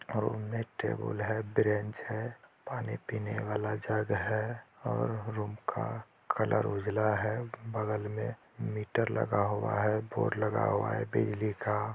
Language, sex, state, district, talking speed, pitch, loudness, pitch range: Hindi, male, Jharkhand, Jamtara, 140 wpm, 110 Hz, -33 LUFS, 105-110 Hz